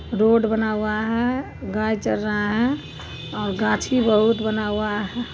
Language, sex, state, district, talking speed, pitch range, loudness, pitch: Maithili, female, Bihar, Supaul, 145 wpm, 215-230 Hz, -22 LUFS, 220 Hz